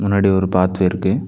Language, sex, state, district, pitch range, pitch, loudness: Tamil, male, Tamil Nadu, Nilgiris, 90-100 Hz, 95 Hz, -17 LUFS